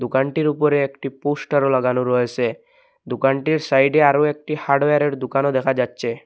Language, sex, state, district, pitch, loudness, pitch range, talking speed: Bengali, male, Assam, Hailakandi, 140 Hz, -19 LUFS, 130-150 Hz, 135 wpm